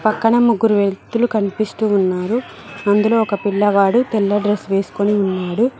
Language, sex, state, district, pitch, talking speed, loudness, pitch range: Telugu, female, Telangana, Mahabubabad, 205 Hz, 125 wpm, -17 LUFS, 200-225 Hz